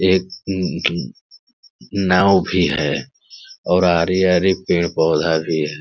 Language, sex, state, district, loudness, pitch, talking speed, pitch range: Hindi, male, Uttar Pradesh, Ghazipur, -18 LUFS, 90 Hz, 105 wpm, 85-95 Hz